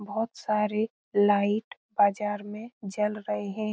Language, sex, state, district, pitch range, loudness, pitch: Hindi, female, Bihar, Lakhisarai, 205-215 Hz, -28 LUFS, 210 Hz